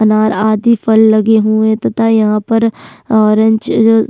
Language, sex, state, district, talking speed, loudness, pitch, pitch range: Hindi, female, Uttarakhand, Tehri Garhwal, 175 wpm, -11 LUFS, 220 Hz, 215-225 Hz